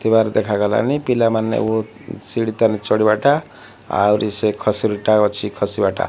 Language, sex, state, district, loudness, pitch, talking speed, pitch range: Odia, male, Odisha, Malkangiri, -18 LUFS, 110 Hz, 120 wpm, 105-115 Hz